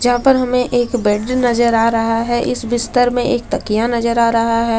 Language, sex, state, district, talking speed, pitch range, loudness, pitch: Hindi, female, Delhi, New Delhi, 225 wpm, 230-245 Hz, -15 LUFS, 240 Hz